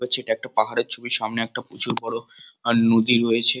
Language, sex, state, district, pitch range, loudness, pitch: Bengali, male, West Bengal, Kolkata, 115-125 Hz, -20 LUFS, 115 Hz